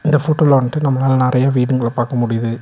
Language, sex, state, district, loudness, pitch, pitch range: Tamil, male, Tamil Nadu, Nilgiris, -15 LUFS, 130 Hz, 120-140 Hz